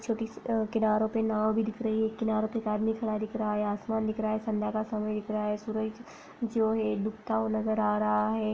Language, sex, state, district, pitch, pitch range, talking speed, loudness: Hindi, female, Bihar, Lakhisarai, 220 Hz, 215-220 Hz, 260 wpm, -30 LUFS